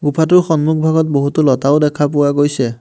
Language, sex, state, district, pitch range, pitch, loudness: Assamese, male, Assam, Hailakandi, 140-160 Hz, 145 Hz, -13 LUFS